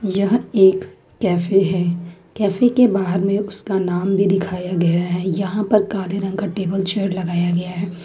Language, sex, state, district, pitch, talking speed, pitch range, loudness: Hindi, female, Jharkhand, Ranchi, 190 Hz, 180 wpm, 180-200 Hz, -19 LUFS